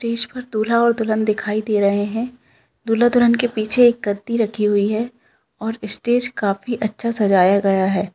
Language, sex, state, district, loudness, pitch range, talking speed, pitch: Hindi, female, Bihar, Kishanganj, -18 LUFS, 205-235 Hz, 185 wpm, 220 Hz